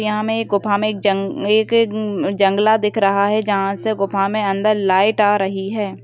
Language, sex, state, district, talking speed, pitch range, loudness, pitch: Hindi, female, Bihar, Begusarai, 190 wpm, 195-215 Hz, -17 LUFS, 205 Hz